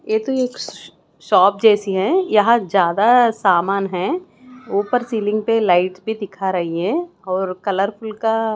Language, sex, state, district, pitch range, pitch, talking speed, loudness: Hindi, female, Chandigarh, Chandigarh, 190-230 Hz, 210 Hz, 155 wpm, -18 LUFS